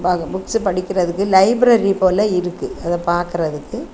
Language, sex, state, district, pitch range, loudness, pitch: Tamil, female, Tamil Nadu, Kanyakumari, 175-195 Hz, -17 LUFS, 185 Hz